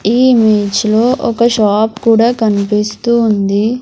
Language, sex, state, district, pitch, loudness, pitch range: Telugu, female, Andhra Pradesh, Sri Satya Sai, 220 Hz, -12 LUFS, 210-235 Hz